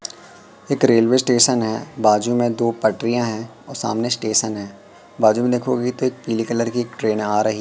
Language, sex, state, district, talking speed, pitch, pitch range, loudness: Hindi, male, Madhya Pradesh, Katni, 195 wpm, 115 Hz, 110-125 Hz, -19 LUFS